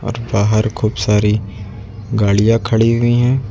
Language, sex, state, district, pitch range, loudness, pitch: Hindi, male, Uttar Pradesh, Lucknow, 105-115 Hz, -15 LUFS, 110 Hz